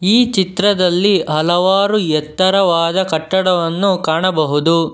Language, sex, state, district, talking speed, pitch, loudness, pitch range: Kannada, male, Karnataka, Bangalore, 75 wpm, 185 Hz, -14 LUFS, 165-195 Hz